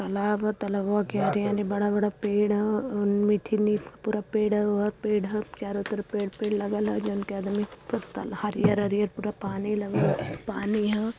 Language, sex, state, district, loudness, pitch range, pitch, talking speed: Hindi, female, Uttar Pradesh, Varanasi, -27 LUFS, 205-210 Hz, 210 Hz, 145 wpm